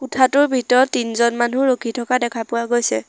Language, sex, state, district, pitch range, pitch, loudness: Assamese, female, Assam, Sonitpur, 235-260 Hz, 240 Hz, -18 LUFS